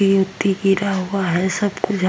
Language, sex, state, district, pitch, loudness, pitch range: Hindi, female, Uttar Pradesh, Jyotiba Phule Nagar, 195 Hz, -19 LUFS, 190-200 Hz